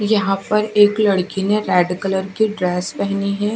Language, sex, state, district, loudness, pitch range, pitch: Hindi, female, Bihar, West Champaran, -18 LUFS, 190-210 Hz, 200 Hz